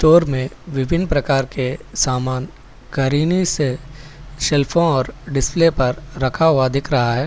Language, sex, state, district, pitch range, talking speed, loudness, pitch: Hindi, male, Telangana, Hyderabad, 130-155 Hz, 130 wpm, -18 LUFS, 140 Hz